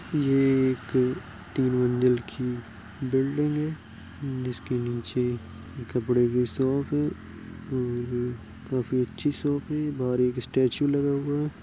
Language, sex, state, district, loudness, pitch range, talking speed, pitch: Hindi, male, Uttar Pradesh, Jalaun, -27 LUFS, 120-140 Hz, 125 wpm, 125 Hz